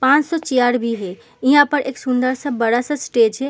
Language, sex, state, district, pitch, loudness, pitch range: Hindi, female, Uttar Pradesh, Muzaffarnagar, 260 Hz, -17 LUFS, 240-285 Hz